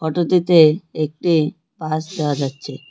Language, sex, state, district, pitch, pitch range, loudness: Bengali, male, West Bengal, Cooch Behar, 155 Hz, 150-175 Hz, -18 LUFS